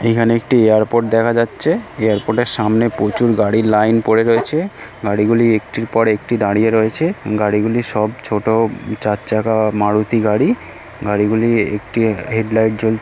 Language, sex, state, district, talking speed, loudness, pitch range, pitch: Bengali, female, West Bengal, North 24 Parganas, 155 wpm, -16 LUFS, 105-115 Hz, 110 Hz